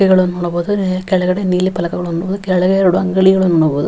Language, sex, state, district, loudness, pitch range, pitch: Kannada, female, Karnataka, Raichur, -15 LUFS, 175-190 Hz, 185 Hz